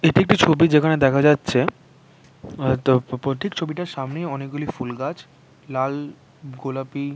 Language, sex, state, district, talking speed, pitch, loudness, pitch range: Bengali, male, West Bengal, North 24 Parganas, 135 wpm, 140 Hz, -21 LUFS, 135-160 Hz